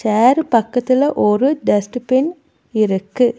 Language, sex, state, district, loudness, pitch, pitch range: Tamil, female, Tamil Nadu, Nilgiris, -16 LUFS, 245 Hz, 215-270 Hz